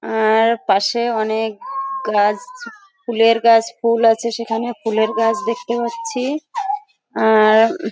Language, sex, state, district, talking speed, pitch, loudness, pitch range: Bengali, female, West Bengal, Jhargram, 115 wpm, 230 Hz, -17 LUFS, 220-280 Hz